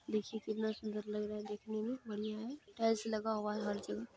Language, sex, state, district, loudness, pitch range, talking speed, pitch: Maithili, female, Bihar, Supaul, -40 LUFS, 210-220 Hz, 230 wpm, 215 Hz